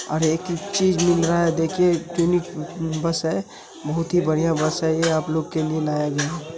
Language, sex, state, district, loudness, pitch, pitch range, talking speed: Hindi, male, Uttar Pradesh, Hamirpur, -22 LUFS, 165 Hz, 155-175 Hz, 220 wpm